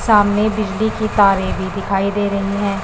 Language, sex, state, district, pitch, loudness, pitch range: Hindi, male, Punjab, Pathankot, 200 Hz, -17 LUFS, 195-215 Hz